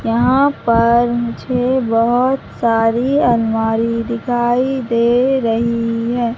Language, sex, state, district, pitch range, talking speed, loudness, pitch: Hindi, female, Madhya Pradesh, Katni, 230-250 Hz, 95 wpm, -15 LUFS, 235 Hz